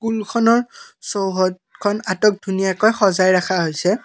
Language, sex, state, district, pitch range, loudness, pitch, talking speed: Assamese, male, Assam, Kamrup Metropolitan, 185-225 Hz, -18 LUFS, 200 Hz, 105 wpm